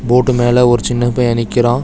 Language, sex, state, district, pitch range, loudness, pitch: Tamil, male, Tamil Nadu, Chennai, 120-125 Hz, -13 LUFS, 120 Hz